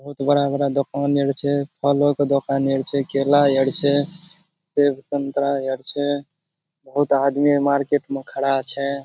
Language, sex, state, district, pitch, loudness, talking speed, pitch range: Maithili, male, Bihar, Supaul, 140 Hz, -21 LUFS, 160 wpm, 140-145 Hz